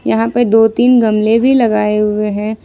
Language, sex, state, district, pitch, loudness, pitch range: Hindi, female, Jharkhand, Ranchi, 225 Hz, -12 LUFS, 210-235 Hz